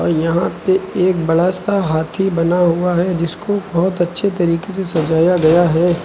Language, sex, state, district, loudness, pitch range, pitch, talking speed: Hindi, male, Uttar Pradesh, Lucknow, -16 LUFS, 170-185 Hz, 175 Hz, 170 wpm